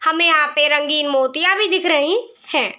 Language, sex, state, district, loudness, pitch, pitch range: Hindi, female, Bihar, Araria, -15 LUFS, 315 Hz, 295-375 Hz